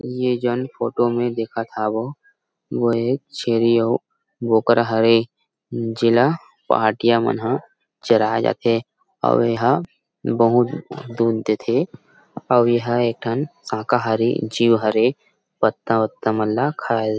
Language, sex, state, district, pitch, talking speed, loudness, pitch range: Chhattisgarhi, male, Chhattisgarh, Rajnandgaon, 115 Hz, 125 wpm, -20 LUFS, 115-120 Hz